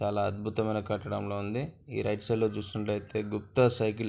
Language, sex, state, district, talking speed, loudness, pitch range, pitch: Telugu, male, Andhra Pradesh, Anantapur, 190 wpm, -31 LUFS, 105-110 Hz, 105 Hz